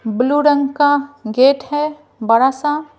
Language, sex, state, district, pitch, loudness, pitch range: Hindi, female, Bihar, Patna, 285 Hz, -15 LUFS, 260-295 Hz